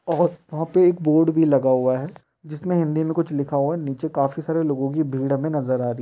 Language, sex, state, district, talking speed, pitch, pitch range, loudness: Hindi, male, Bihar, Jamui, 260 wpm, 155 Hz, 140-165 Hz, -21 LUFS